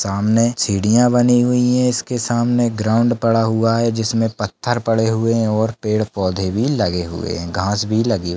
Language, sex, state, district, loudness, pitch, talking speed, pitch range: Hindi, male, Maharashtra, Solapur, -17 LUFS, 115 Hz, 185 wpm, 105-120 Hz